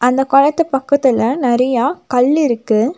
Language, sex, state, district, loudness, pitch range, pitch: Tamil, female, Tamil Nadu, Nilgiris, -14 LUFS, 240-280 Hz, 260 Hz